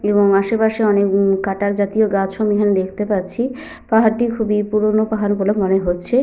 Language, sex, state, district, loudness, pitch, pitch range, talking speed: Bengali, female, Jharkhand, Sahebganj, -17 LUFS, 210 Hz, 195-220 Hz, 175 wpm